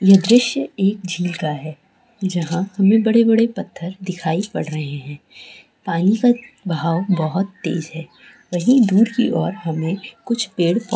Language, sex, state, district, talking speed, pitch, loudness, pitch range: Hindi, female, Jharkhand, Jamtara, 160 wpm, 190 Hz, -19 LUFS, 170-225 Hz